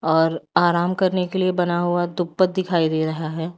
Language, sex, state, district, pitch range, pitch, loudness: Hindi, female, Uttar Pradesh, Lalitpur, 160-185 Hz, 175 Hz, -21 LUFS